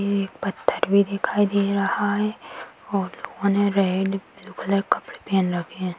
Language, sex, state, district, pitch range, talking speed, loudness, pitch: Hindi, male, Maharashtra, Sindhudurg, 195-200 Hz, 170 wpm, -23 LUFS, 200 Hz